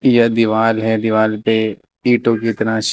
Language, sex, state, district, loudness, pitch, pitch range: Hindi, male, Uttar Pradesh, Lucknow, -16 LUFS, 110 Hz, 110-115 Hz